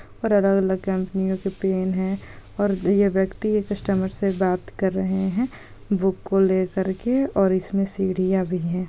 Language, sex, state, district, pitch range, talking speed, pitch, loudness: Hindi, female, Bihar, Jahanabad, 190-200 Hz, 170 wpm, 190 Hz, -23 LUFS